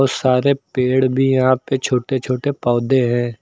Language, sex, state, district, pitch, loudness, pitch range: Hindi, male, Uttar Pradesh, Lucknow, 130 Hz, -17 LUFS, 125-135 Hz